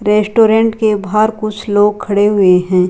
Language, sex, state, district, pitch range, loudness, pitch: Hindi, female, Rajasthan, Jaipur, 205-220 Hz, -12 LUFS, 210 Hz